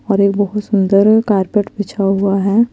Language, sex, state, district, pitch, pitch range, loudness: Hindi, female, Chandigarh, Chandigarh, 200 Hz, 195-210 Hz, -14 LUFS